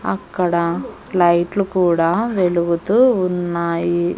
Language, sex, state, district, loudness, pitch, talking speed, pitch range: Telugu, female, Andhra Pradesh, Annamaya, -18 LUFS, 175 Hz, 70 wpm, 170-185 Hz